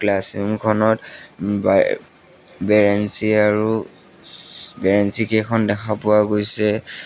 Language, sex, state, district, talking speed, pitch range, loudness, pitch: Assamese, male, Assam, Sonitpur, 100 wpm, 100-110 Hz, -18 LUFS, 105 Hz